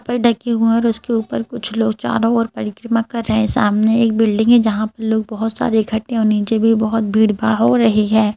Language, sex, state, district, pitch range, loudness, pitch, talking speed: Hindi, female, Madhya Pradesh, Bhopal, 215-230 Hz, -16 LUFS, 225 Hz, 235 wpm